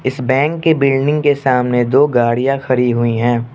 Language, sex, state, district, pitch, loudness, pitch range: Hindi, male, Arunachal Pradesh, Lower Dibang Valley, 130 Hz, -14 LUFS, 120-140 Hz